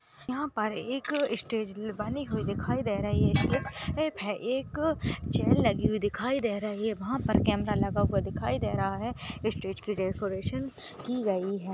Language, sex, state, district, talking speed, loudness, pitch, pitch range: Hindi, female, Maharashtra, Sindhudurg, 180 wpm, -30 LUFS, 215 Hz, 205-260 Hz